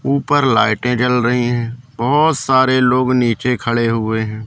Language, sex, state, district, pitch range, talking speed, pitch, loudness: Hindi, male, Madhya Pradesh, Katni, 115-130 Hz, 160 wpm, 125 Hz, -15 LUFS